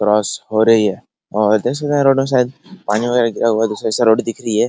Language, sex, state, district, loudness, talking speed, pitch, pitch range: Hindi, male, Bihar, Araria, -16 LUFS, 305 wpm, 115 Hz, 110-125 Hz